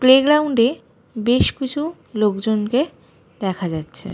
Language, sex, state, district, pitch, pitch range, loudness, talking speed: Bengali, female, West Bengal, Malda, 230 Hz, 190-265 Hz, -19 LUFS, 115 wpm